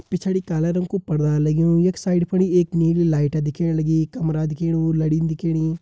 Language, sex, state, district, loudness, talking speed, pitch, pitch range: Hindi, male, Uttarakhand, Uttarkashi, -20 LUFS, 185 wpm, 165 Hz, 160-175 Hz